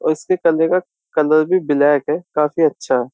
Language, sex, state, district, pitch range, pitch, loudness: Hindi, male, Uttar Pradesh, Jyotiba Phule Nagar, 145-170 Hz, 155 Hz, -17 LUFS